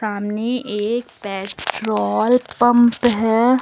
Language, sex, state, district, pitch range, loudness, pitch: Hindi, female, Uttar Pradesh, Lucknow, 210-240 Hz, -18 LUFS, 225 Hz